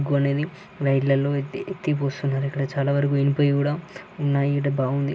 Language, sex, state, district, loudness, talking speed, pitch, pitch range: Telugu, male, Andhra Pradesh, Guntur, -23 LUFS, 95 wpm, 140 Hz, 140-145 Hz